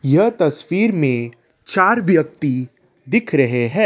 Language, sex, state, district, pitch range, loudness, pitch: Hindi, male, Assam, Kamrup Metropolitan, 130-185 Hz, -17 LUFS, 155 Hz